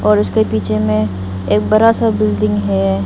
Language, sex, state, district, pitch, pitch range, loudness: Hindi, female, Arunachal Pradesh, Papum Pare, 105 Hz, 100-105 Hz, -15 LUFS